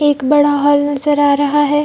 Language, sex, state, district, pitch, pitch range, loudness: Hindi, female, Chhattisgarh, Bilaspur, 290 Hz, 285-295 Hz, -13 LUFS